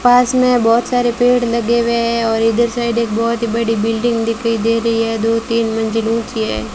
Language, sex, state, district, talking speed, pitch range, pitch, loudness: Hindi, female, Rajasthan, Bikaner, 220 wpm, 225-235 Hz, 230 Hz, -15 LUFS